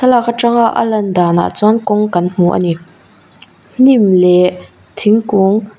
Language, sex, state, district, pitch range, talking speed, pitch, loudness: Mizo, female, Mizoram, Aizawl, 180-225 Hz, 145 wpm, 210 Hz, -12 LUFS